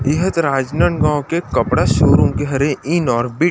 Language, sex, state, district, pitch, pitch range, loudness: Chhattisgarhi, male, Chhattisgarh, Rajnandgaon, 145 Hz, 130-165 Hz, -16 LUFS